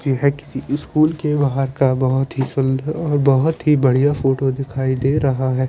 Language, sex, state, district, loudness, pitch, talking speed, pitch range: Hindi, male, Chandigarh, Chandigarh, -18 LUFS, 135 Hz, 200 wpm, 130-145 Hz